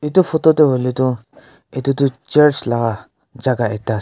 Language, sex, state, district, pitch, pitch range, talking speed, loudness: Nagamese, male, Nagaland, Kohima, 130 Hz, 120-150 Hz, 180 wpm, -16 LUFS